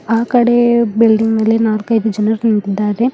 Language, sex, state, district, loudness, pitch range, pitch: Kannada, female, Karnataka, Bidar, -13 LUFS, 215-235 Hz, 225 Hz